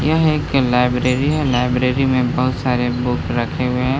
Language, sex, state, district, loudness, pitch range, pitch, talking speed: Hindi, male, Bihar, Gaya, -17 LUFS, 125-135 Hz, 125 Hz, 180 wpm